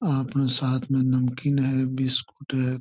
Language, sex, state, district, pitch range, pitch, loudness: Marwari, male, Rajasthan, Churu, 130-135 Hz, 130 Hz, -24 LUFS